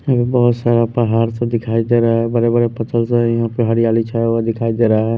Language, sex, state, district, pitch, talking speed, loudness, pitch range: Hindi, male, Punjab, Pathankot, 115 Hz, 280 wpm, -16 LUFS, 115-120 Hz